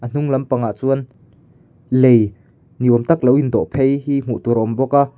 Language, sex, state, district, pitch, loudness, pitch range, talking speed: Mizo, male, Mizoram, Aizawl, 130 Hz, -17 LUFS, 120-140 Hz, 230 wpm